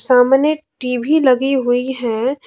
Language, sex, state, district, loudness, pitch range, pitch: Hindi, female, Jharkhand, Deoghar, -16 LUFS, 250-275 Hz, 260 Hz